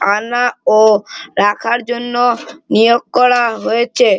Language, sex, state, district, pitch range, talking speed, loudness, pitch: Bengali, male, West Bengal, Malda, 220-245 Hz, 100 wpm, -14 LUFS, 235 Hz